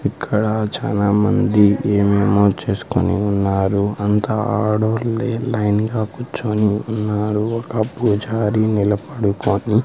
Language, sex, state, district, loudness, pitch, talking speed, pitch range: Telugu, male, Andhra Pradesh, Sri Satya Sai, -18 LUFS, 105 Hz, 90 wpm, 105-110 Hz